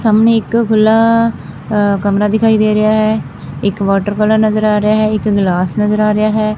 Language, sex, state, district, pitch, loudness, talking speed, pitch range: Punjabi, female, Punjab, Fazilka, 215 Hz, -12 LUFS, 200 wpm, 210-220 Hz